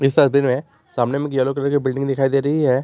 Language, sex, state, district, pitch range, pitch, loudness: Hindi, male, Jharkhand, Garhwa, 135-140 Hz, 140 Hz, -19 LUFS